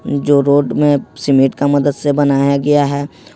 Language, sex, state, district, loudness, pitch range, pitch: Hindi, male, Jharkhand, Ranchi, -14 LUFS, 140-145 Hz, 145 Hz